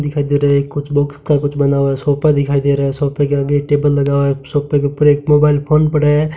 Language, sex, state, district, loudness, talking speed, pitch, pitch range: Hindi, male, Rajasthan, Bikaner, -14 LUFS, 290 wpm, 145 Hz, 140-145 Hz